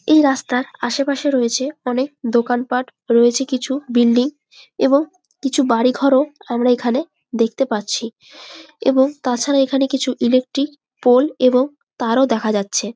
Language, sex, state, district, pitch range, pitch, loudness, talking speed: Bengali, female, West Bengal, Jalpaiguri, 240-275 Hz, 255 Hz, -18 LUFS, 130 wpm